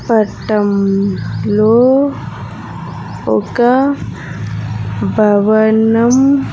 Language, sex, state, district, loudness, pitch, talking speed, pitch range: Telugu, female, Andhra Pradesh, Sri Satya Sai, -13 LUFS, 215 Hz, 35 wpm, 195-240 Hz